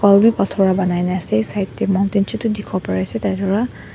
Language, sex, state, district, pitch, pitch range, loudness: Nagamese, female, Nagaland, Dimapur, 195 Hz, 190-210 Hz, -18 LUFS